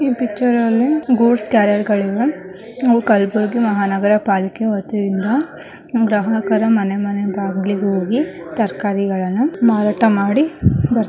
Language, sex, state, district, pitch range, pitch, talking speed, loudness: Kannada, male, Karnataka, Gulbarga, 200-235 Hz, 215 Hz, 120 wpm, -17 LUFS